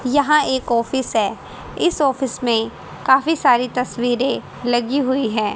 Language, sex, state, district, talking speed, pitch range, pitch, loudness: Hindi, female, Haryana, Charkhi Dadri, 140 wpm, 240-270 Hz, 255 Hz, -19 LUFS